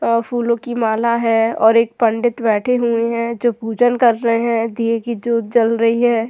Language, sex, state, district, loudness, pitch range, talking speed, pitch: Hindi, female, Uttar Pradesh, Jyotiba Phule Nagar, -16 LUFS, 230-235 Hz, 210 wpm, 230 Hz